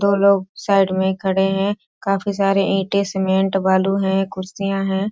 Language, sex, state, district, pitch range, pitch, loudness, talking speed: Hindi, female, Bihar, Sitamarhi, 190-200 Hz, 195 Hz, -19 LUFS, 165 wpm